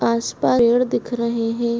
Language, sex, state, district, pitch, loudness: Hindi, female, Jharkhand, Sahebganj, 235 Hz, -19 LUFS